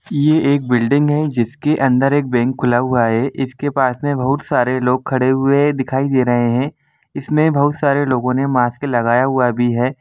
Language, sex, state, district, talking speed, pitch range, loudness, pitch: Hindi, male, Jharkhand, Jamtara, 215 wpm, 125-145 Hz, -16 LUFS, 130 Hz